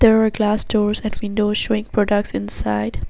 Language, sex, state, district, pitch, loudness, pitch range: English, female, Assam, Sonitpur, 210 Hz, -19 LUFS, 135-215 Hz